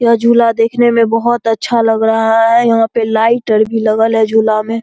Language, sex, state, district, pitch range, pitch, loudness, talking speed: Hindi, female, Bihar, Saharsa, 225-235 Hz, 225 Hz, -11 LUFS, 225 wpm